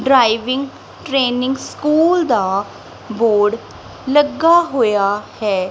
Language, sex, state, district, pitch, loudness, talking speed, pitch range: Punjabi, female, Punjab, Kapurthala, 250 Hz, -16 LUFS, 85 wpm, 210-275 Hz